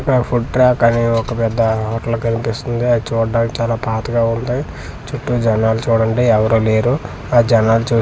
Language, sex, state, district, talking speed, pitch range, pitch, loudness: Telugu, male, Andhra Pradesh, Manyam, 165 wpm, 115-120 Hz, 115 Hz, -16 LUFS